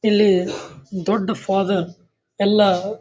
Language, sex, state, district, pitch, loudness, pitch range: Kannada, male, Karnataka, Bijapur, 195 Hz, -19 LUFS, 190-210 Hz